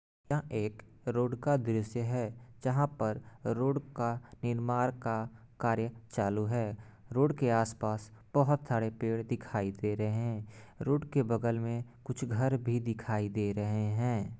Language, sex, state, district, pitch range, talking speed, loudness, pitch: Hindi, male, Bihar, Gopalganj, 110-125 Hz, 150 wpm, -33 LUFS, 115 Hz